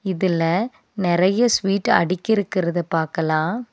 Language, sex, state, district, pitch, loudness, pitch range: Tamil, female, Tamil Nadu, Nilgiris, 185 Hz, -20 LUFS, 170-210 Hz